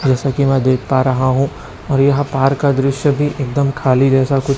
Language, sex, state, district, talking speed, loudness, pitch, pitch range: Hindi, male, Chhattisgarh, Raipur, 225 wpm, -15 LUFS, 135 Hz, 135-140 Hz